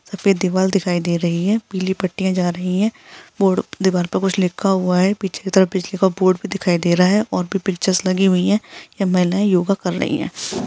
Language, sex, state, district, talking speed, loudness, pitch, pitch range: Hindi, female, Bihar, Jahanabad, 225 wpm, -18 LUFS, 190 Hz, 180-195 Hz